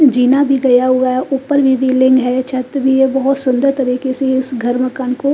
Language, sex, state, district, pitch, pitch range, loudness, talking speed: Hindi, female, Chandigarh, Chandigarh, 260 Hz, 255-270 Hz, -14 LUFS, 235 wpm